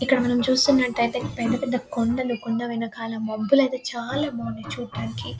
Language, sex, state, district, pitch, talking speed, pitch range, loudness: Telugu, female, Telangana, Nalgonda, 235 Hz, 135 wpm, 220-255 Hz, -24 LUFS